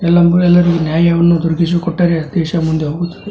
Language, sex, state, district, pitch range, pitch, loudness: Kannada, male, Karnataka, Dharwad, 165-175 Hz, 170 Hz, -13 LUFS